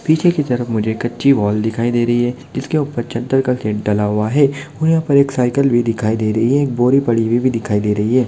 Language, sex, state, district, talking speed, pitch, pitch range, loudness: Hindi, male, Bihar, Madhepura, 270 wpm, 120 Hz, 110-140 Hz, -16 LUFS